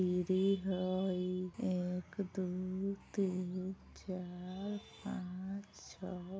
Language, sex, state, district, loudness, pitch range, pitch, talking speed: Maithili, female, Bihar, Vaishali, -39 LUFS, 185-195 Hz, 185 Hz, 65 wpm